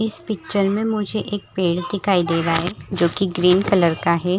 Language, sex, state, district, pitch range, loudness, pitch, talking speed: Hindi, female, Chhattisgarh, Rajnandgaon, 170-205 Hz, -20 LUFS, 185 Hz, 220 wpm